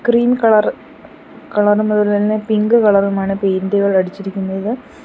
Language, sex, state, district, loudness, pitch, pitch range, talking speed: Malayalam, female, Kerala, Kollam, -15 LUFS, 205 Hz, 195-220 Hz, 105 wpm